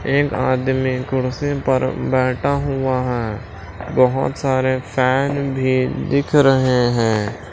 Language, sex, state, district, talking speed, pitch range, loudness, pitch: Hindi, male, Maharashtra, Washim, 110 wpm, 125-135 Hz, -18 LUFS, 130 Hz